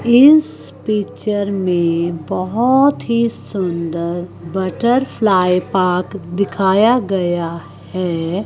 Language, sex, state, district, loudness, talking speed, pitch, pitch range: Hindi, female, Chandigarh, Chandigarh, -16 LUFS, 80 wpm, 190 Hz, 175-220 Hz